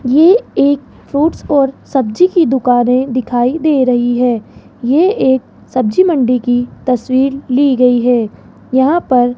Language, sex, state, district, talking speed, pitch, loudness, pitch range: Hindi, female, Rajasthan, Jaipur, 145 wpm, 260 Hz, -13 LUFS, 245-285 Hz